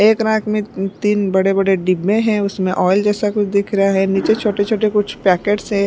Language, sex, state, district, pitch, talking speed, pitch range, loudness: Hindi, female, Punjab, Pathankot, 205 Hz, 225 wpm, 195-210 Hz, -16 LUFS